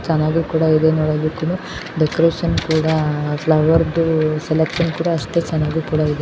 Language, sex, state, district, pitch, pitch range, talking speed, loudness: Kannada, female, Karnataka, Bellary, 160 Hz, 155-165 Hz, 125 wpm, -18 LUFS